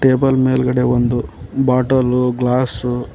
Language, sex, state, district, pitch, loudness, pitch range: Kannada, male, Karnataka, Koppal, 125 Hz, -16 LUFS, 125-130 Hz